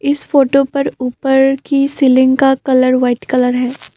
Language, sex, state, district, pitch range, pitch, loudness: Hindi, female, Assam, Kamrup Metropolitan, 255-275 Hz, 265 Hz, -13 LUFS